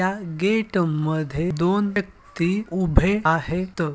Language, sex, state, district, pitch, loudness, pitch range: Marathi, male, Maharashtra, Dhule, 180 Hz, -22 LUFS, 165-195 Hz